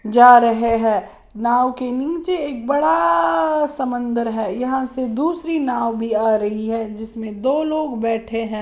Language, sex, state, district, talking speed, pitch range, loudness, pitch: Hindi, female, Maharashtra, Washim, 160 wpm, 225-265 Hz, -18 LUFS, 235 Hz